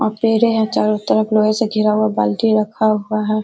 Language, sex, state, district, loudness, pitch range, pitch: Hindi, female, Uttar Pradesh, Hamirpur, -16 LUFS, 215-220 Hz, 215 Hz